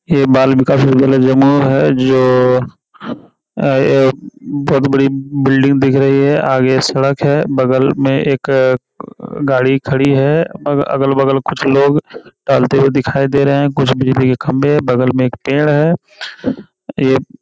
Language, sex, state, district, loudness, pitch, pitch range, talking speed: Hindi, male, Bihar, Jamui, -12 LUFS, 135 Hz, 130-140 Hz, 160 wpm